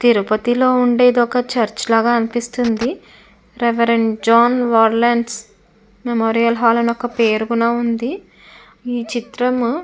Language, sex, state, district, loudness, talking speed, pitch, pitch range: Telugu, female, Andhra Pradesh, Chittoor, -16 LUFS, 115 wpm, 235 Hz, 225-245 Hz